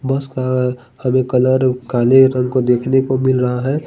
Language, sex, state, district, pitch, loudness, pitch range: Hindi, male, Bihar, Patna, 130 Hz, -15 LUFS, 125-130 Hz